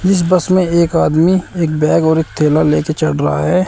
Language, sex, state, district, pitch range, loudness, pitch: Hindi, male, Uttar Pradesh, Shamli, 155-180 Hz, -13 LUFS, 165 Hz